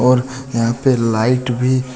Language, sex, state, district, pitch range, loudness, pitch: Hindi, male, Jharkhand, Deoghar, 120-130 Hz, -17 LUFS, 125 Hz